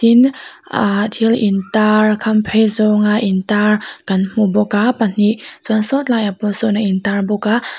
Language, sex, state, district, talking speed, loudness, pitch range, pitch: Mizo, female, Mizoram, Aizawl, 170 wpm, -15 LUFS, 205-220 Hz, 215 Hz